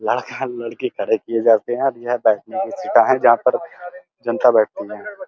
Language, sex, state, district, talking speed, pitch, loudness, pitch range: Hindi, male, Uttar Pradesh, Muzaffarnagar, 180 wpm, 130 Hz, -18 LUFS, 115-180 Hz